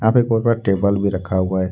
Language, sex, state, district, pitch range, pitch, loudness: Hindi, male, Jharkhand, Ranchi, 95-115 Hz, 100 Hz, -18 LUFS